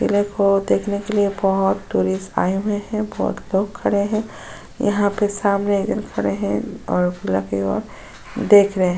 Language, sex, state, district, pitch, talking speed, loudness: Hindi, female, Uttar Pradesh, Jyotiba Phule Nagar, 200 Hz, 185 wpm, -20 LUFS